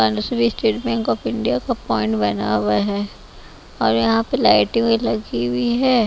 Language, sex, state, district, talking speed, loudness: Hindi, female, Bihar, West Champaran, 180 wpm, -19 LUFS